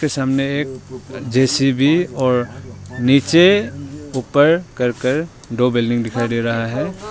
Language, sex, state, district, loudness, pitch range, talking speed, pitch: Hindi, male, Arunachal Pradesh, Longding, -17 LUFS, 120-145 Hz, 110 wpm, 130 Hz